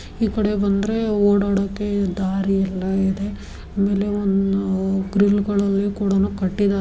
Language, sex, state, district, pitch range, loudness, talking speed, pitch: Kannada, female, Karnataka, Dharwad, 195-205 Hz, -20 LUFS, 105 wpm, 200 Hz